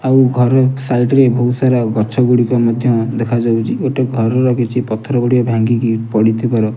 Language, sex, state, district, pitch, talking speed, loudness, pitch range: Odia, male, Odisha, Nuapada, 120 Hz, 170 wpm, -14 LUFS, 115-125 Hz